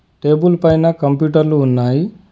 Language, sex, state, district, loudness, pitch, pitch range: Telugu, male, Telangana, Adilabad, -14 LUFS, 155 Hz, 145-165 Hz